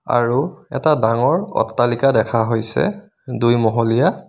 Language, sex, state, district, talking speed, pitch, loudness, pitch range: Assamese, male, Assam, Kamrup Metropolitan, 100 wpm, 120 Hz, -18 LUFS, 115-155 Hz